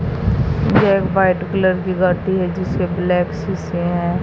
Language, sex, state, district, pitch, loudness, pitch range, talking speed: Hindi, female, Haryana, Jhajjar, 180 Hz, -18 LUFS, 175-185 Hz, 155 wpm